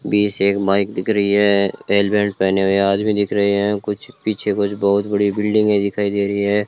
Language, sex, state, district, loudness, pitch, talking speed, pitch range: Hindi, male, Rajasthan, Bikaner, -17 LUFS, 100 Hz, 215 wpm, 100-105 Hz